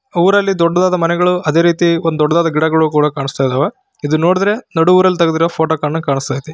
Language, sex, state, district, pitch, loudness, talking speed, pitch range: Kannada, male, Karnataka, Raichur, 165 Hz, -14 LUFS, 185 wpm, 155-180 Hz